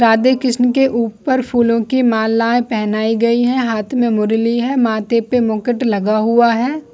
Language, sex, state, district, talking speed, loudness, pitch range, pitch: Hindi, female, Chhattisgarh, Bilaspur, 180 wpm, -15 LUFS, 225-245 Hz, 235 Hz